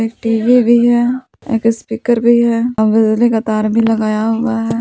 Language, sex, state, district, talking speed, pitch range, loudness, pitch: Hindi, female, Jharkhand, Palamu, 185 wpm, 225-235 Hz, -13 LUFS, 230 Hz